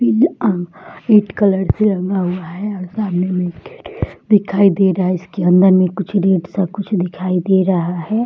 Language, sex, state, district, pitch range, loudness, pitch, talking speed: Hindi, female, Bihar, Jahanabad, 180-205 Hz, -16 LUFS, 190 Hz, 195 wpm